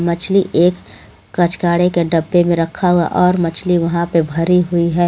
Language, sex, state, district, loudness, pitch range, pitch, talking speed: Hindi, female, Jharkhand, Garhwa, -15 LUFS, 165-180 Hz, 170 Hz, 175 wpm